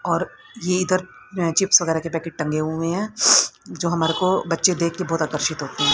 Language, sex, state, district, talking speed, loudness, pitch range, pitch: Hindi, female, Haryana, Rohtak, 200 wpm, -20 LUFS, 160-185 Hz, 165 Hz